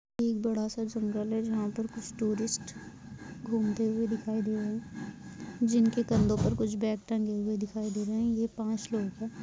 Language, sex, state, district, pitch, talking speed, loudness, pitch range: Hindi, female, Rajasthan, Churu, 220 Hz, 190 wpm, -31 LUFS, 215-225 Hz